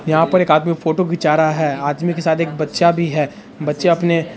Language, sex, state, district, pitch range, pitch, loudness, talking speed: Hindi, male, Bihar, Araria, 155-170 Hz, 160 Hz, -17 LUFS, 245 wpm